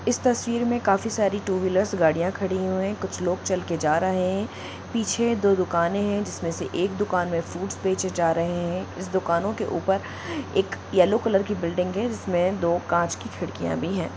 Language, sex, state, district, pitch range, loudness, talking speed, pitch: Hindi, female, Jharkhand, Jamtara, 175-205 Hz, -25 LUFS, 195 wpm, 190 Hz